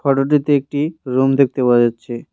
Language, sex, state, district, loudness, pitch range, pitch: Bengali, male, West Bengal, Cooch Behar, -16 LUFS, 125-145 Hz, 135 Hz